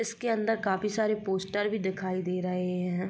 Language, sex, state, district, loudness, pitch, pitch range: Hindi, female, Uttar Pradesh, Jyotiba Phule Nagar, -30 LUFS, 190 Hz, 185-215 Hz